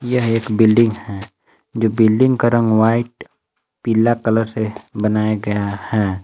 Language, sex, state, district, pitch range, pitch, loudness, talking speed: Hindi, male, Jharkhand, Palamu, 105-115 Hz, 110 Hz, -17 LUFS, 145 wpm